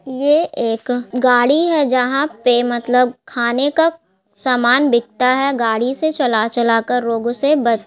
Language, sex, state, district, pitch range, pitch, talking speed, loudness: Hindi, female, Bihar, Gaya, 235-275 Hz, 250 Hz, 160 wpm, -16 LUFS